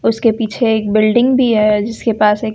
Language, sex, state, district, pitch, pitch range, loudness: Hindi, female, Bihar, West Champaran, 220 Hz, 215-230 Hz, -14 LUFS